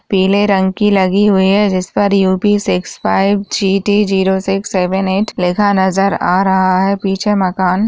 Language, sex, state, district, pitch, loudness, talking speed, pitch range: Hindi, female, Uttar Pradesh, Varanasi, 195 Hz, -13 LUFS, 185 wpm, 190-205 Hz